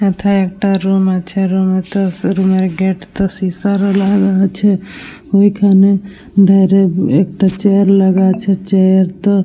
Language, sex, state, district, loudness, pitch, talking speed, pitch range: Bengali, female, West Bengal, Dakshin Dinajpur, -13 LUFS, 195 Hz, 150 wpm, 190-200 Hz